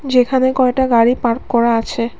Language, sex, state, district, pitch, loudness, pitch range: Bengali, female, Assam, Kamrup Metropolitan, 245 Hz, -15 LUFS, 235-260 Hz